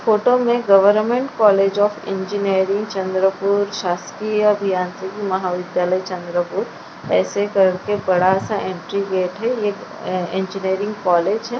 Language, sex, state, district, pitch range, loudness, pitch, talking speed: Hindi, female, Maharashtra, Chandrapur, 185-210 Hz, -19 LUFS, 195 Hz, 120 wpm